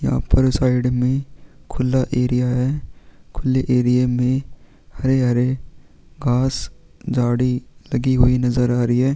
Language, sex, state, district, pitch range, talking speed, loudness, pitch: Hindi, male, Chhattisgarh, Sukma, 125-130 Hz, 140 wpm, -19 LUFS, 125 Hz